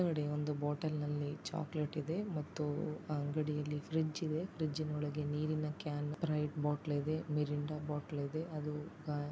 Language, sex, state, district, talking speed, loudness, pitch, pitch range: Kannada, female, Karnataka, Dakshina Kannada, 165 wpm, -39 LUFS, 150 Hz, 150-155 Hz